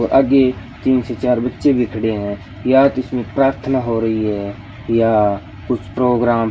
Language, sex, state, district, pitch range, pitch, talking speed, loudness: Hindi, male, Rajasthan, Bikaner, 105-130 Hz, 120 Hz, 175 wpm, -17 LUFS